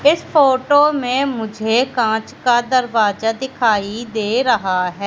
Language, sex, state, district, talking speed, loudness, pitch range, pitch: Hindi, female, Madhya Pradesh, Katni, 130 wpm, -17 LUFS, 220-265 Hz, 240 Hz